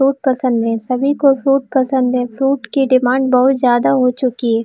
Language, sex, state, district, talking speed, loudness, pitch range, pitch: Hindi, female, Jharkhand, Jamtara, 205 wpm, -15 LUFS, 250-270 Hz, 255 Hz